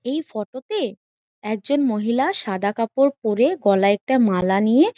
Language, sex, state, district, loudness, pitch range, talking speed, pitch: Bengali, female, West Bengal, Jhargram, -20 LUFS, 210-275 Hz, 145 wpm, 230 Hz